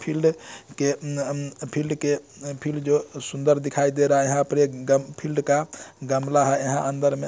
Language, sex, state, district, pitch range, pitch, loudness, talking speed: Hindi, male, Bihar, Muzaffarpur, 140-145 Hz, 140 Hz, -24 LUFS, 200 wpm